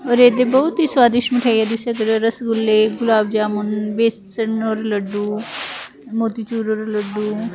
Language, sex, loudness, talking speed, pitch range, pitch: Punjabi, female, -18 LUFS, 145 wpm, 215-235 Hz, 225 Hz